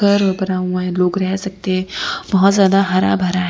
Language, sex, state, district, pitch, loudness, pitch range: Hindi, female, Gujarat, Valsad, 185 Hz, -16 LUFS, 180-195 Hz